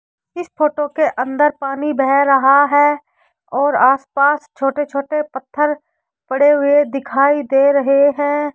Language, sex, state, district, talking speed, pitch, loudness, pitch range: Hindi, male, Rajasthan, Jaipur, 135 wpm, 285 Hz, -15 LUFS, 275-295 Hz